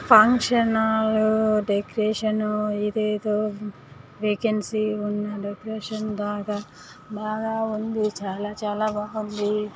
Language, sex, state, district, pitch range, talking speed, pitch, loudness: Telugu, female, Andhra Pradesh, Guntur, 210-215 Hz, 80 wpm, 215 Hz, -24 LUFS